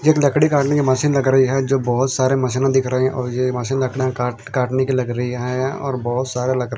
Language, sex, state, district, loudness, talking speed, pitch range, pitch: Hindi, male, Punjab, Fazilka, -19 LUFS, 240 wpm, 125-135 Hz, 130 Hz